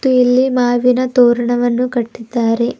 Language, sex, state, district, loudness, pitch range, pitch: Kannada, female, Karnataka, Bidar, -14 LUFS, 240-250 Hz, 245 Hz